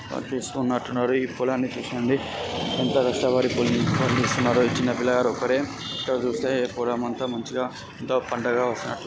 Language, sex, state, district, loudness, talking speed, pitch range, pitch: Telugu, male, Andhra Pradesh, Srikakulam, -24 LUFS, 125 wpm, 120-130 Hz, 125 Hz